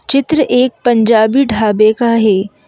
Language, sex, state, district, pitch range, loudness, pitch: Hindi, female, Madhya Pradesh, Bhopal, 215-255 Hz, -11 LUFS, 230 Hz